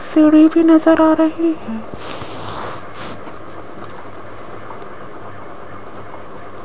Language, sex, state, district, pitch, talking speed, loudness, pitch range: Hindi, female, Rajasthan, Jaipur, 320 Hz, 55 wpm, -14 LUFS, 310-325 Hz